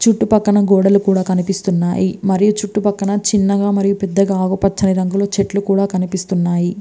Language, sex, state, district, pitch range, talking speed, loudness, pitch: Telugu, female, Andhra Pradesh, Visakhapatnam, 190-200 Hz, 130 wpm, -15 LUFS, 195 Hz